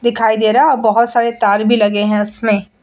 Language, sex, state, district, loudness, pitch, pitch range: Hindi, female, Bihar, Vaishali, -13 LUFS, 220 Hz, 210-235 Hz